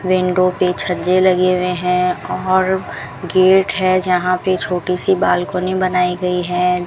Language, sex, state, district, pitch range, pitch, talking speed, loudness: Hindi, female, Rajasthan, Bikaner, 180-185 Hz, 180 Hz, 150 wpm, -16 LUFS